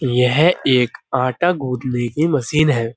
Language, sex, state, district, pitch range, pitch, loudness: Hindi, male, Uttar Pradesh, Budaun, 125-155 Hz, 130 Hz, -17 LUFS